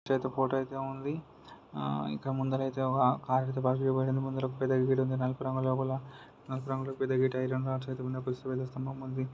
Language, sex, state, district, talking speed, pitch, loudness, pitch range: Telugu, male, Karnataka, Gulbarga, 135 wpm, 130 Hz, -32 LUFS, 130-135 Hz